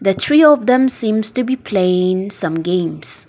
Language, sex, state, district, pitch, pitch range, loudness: English, female, Nagaland, Dimapur, 210 Hz, 180-255 Hz, -15 LUFS